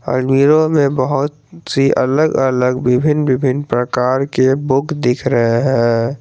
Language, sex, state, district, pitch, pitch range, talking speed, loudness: Hindi, male, Jharkhand, Garhwa, 130 Hz, 125-140 Hz, 125 wpm, -15 LUFS